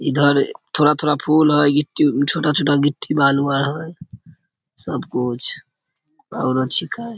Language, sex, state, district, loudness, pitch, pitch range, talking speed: Maithili, male, Bihar, Samastipur, -18 LUFS, 145 Hz, 140-150 Hz, 110 wpm